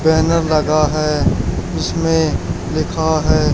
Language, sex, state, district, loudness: Hindi, male, Haryana, Charkhi Dadri, -17 LUFS